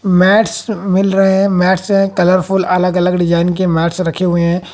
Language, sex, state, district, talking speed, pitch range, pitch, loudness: Hindi, female, Haryana, Jhajjar, 190 wpm, 180-195 Hz, 185 Hz, -13 LUFS